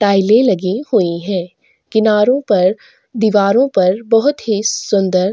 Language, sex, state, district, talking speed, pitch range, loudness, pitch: Hindi, female, Chhattisgarh, Sukma, 125 wpm, 190-225 Hz, -14 LUFS, 210 Hz